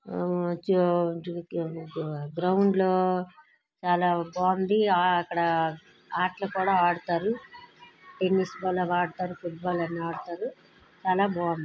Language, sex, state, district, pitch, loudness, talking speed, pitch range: Telugu, female, Andhra Pradesh, Srikakulam, 180 Hz, -27 LUFS, 90 wpm, 170-185 Hz